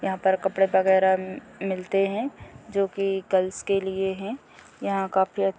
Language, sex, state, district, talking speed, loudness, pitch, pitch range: Hindi, female, Chhattisgarh, Bilaspur, 150 wpm, -25 LUFS, 195 Hz, 190-195 Hz